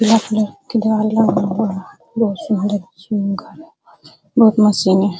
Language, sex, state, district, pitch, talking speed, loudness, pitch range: Hindi, female, Uttar Pradesh, Hamirpur, 210 Hz, 35 wpm, -17 LUFS, 195-225 Hz